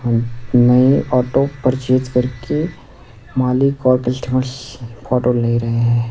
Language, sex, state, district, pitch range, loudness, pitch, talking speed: Hindi, male, Odisha, Nuapada, 120-130 Hz, -17 LUFS, 125 Hz, 110 wpm